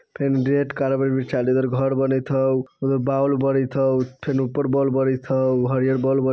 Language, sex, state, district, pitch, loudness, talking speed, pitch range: Bajjika, male, Bihar, Vaishali, 135 Hz, -21 LUFS, 210 wpm, 130-135 Hz